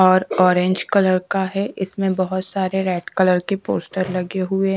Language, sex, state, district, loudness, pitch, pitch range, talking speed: Hindi, female, Bihar, Patna, -20 LUFS, 185 Hz, 185-195 Hz, 175 wpm